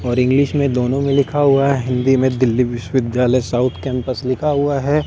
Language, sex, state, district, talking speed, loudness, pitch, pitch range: Hindi, male, Delhi, New Delhi, 200 wpm, -17 LUFS, 130 Hz, 125-140 Hz